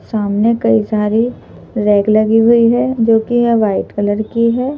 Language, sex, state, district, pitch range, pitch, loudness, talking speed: Hindi, female, Madhya Pradesh, Bhopal, 210-235 Hz, 225 Hz, -13 LUFS, 165 wpm